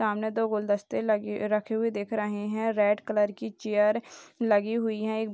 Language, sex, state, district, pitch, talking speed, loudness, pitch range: Hindi, male, Bihar, Purnia, 215 Hz, 180 wpm, -28 LUFS, 210-220 Hz